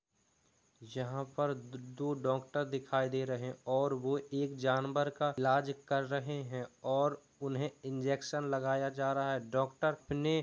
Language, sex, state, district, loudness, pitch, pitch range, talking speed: Hindi, male, Uttar Pradesh, Jalaun, -36 LUFS, 135 Hz, 130-145 Hz, 160 wpm